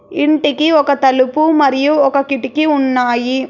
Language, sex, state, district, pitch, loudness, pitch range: Telugu, female, Telangana, Hyderabad, 280 Hz, -13 LUFS, 265-300 Hz